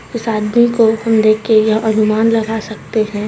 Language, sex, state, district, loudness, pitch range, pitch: Hindi, female, Chhattisgarh, Raipur, -14 LUFS, 215-225 Hz, 220 Hz